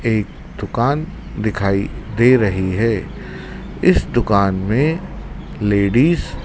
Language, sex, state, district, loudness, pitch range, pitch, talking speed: Hindi, male, Madhya Pradesh, Dhar, -17 LUFS, 100-125 Hz, 110 Hz, 100 wpm